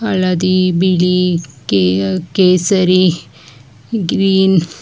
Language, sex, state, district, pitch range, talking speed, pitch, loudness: Kannada, female, Karnataka, Bangalore, 140-185 Hz, 75 wpm, 180 Hz, -13 LUFS